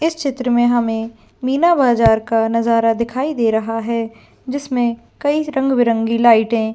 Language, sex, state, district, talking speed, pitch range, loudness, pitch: Hindi, female, Jharkhand, Jamtara, 170 wpm, 225-270 Hz, -17 LUFS, 235 Hz